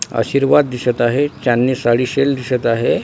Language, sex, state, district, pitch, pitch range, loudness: Marathi, male, Maharashtra, Washim, 125 Hz, 120-140 Hz, -16 LUFS